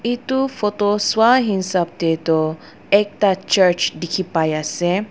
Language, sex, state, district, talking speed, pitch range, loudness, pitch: Nagamese, female, Nagaland, Dimapur, 130 wpm, 170-210 Hz, -18 LUFS, 190 Hz